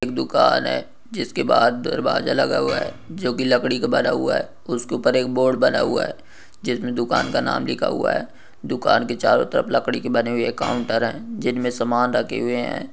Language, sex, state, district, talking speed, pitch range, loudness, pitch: Hindi, male, Maharashtra, Solapur, 210 wpm, 115-125 Hz, -21 LUFS, 120 Hz